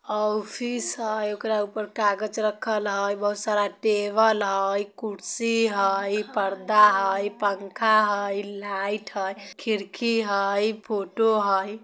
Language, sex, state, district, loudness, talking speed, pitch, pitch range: Bajjika, female, Bihar, Vaishali, -25 LUFS, 115 wpm, 205 Hz, 200-215 Hz